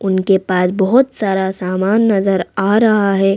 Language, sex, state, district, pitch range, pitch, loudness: Hindi, female, Madhya Pradesh, Bhopal, 190-210 Hz, 195 Hz, -14 LUFS